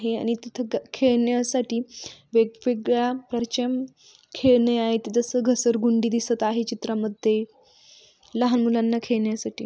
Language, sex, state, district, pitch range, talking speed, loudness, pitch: Marathi, female, Maharashtra, Sindhudurg, 230-245 Hz, 100 wpm, -24 LUFS, 235 Hz